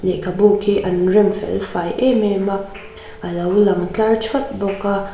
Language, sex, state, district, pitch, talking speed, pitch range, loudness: Mizo, female, Mizoram, Aizawl, 200 Hz, 185 wpm, 195-210 Hz, -18 LUFS